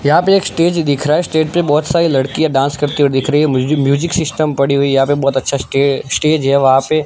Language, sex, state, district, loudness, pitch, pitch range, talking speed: Hindi, male, Gujarat, Gandhinagar, -14 LUFS, 145 Hz, 140-160 Hz, 270 wpm